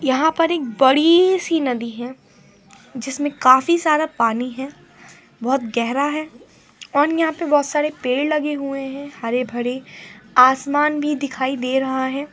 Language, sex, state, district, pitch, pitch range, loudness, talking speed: Hindi, female, West Bengal, Purulia, 270 Hz, 250-300 Hz, -19 LUFS, 150 wpm